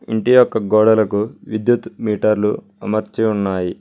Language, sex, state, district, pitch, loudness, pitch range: Telugu, male, Telangana, Mahabubabad, 110 Hz, -17 LUFS, 105-110 Hz